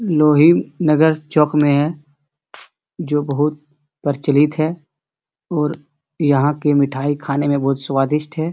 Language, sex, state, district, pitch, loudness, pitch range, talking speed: Hindi, male, Bihar, Supaul, 150 Hz, -17 LUFS, 145-155 Hz, 125 wpm